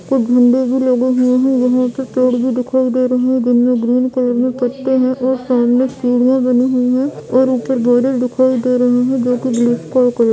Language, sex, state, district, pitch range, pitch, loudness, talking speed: Hindi, female, Bihar, Purnia, 245-260 Hz, 255 Hz, -14 LUFS, 215 wpm